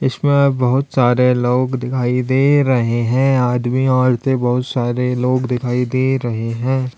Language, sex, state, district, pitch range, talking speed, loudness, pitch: Hindi, male, Uttar Pradesh, Lalitpur, 125-130 Hz, 145 wpm, -16 LUFS, 125 Hz